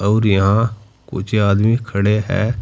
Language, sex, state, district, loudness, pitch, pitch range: Hindi, male, Uttar Pradesh, Saharanpur, -16 LUFS, 105 Hz, 100-115 Hz